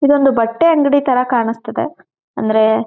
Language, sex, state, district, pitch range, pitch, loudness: Kannada, female, Karnataka, Gulbarga, 225-285 Hz, 250 Hz, -15 LUFS